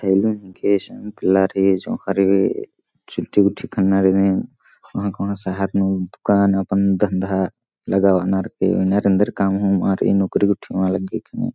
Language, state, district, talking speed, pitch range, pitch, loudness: Kurukh, Chhattisgarh, Jashpur, 135 wpm, 95-100 Hz, 95 Hz, -19 LUFS